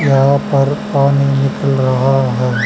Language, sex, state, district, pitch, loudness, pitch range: Hindi, male, Haryana, Charkhi Dadri, 135 Hz, -13 LUFS, 130-140 Hz